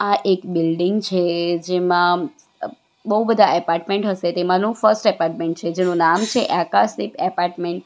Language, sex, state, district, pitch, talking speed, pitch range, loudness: Gujarati, female, Gujarat, Valsad, 180 Hz, 145 wpm, 170-205 Hz, -19 LUFS